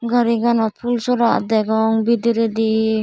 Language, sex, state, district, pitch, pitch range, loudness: Chakma, female, Tripura, Dhalai, 230 Hz, 220-235 Hz, -18 LUFS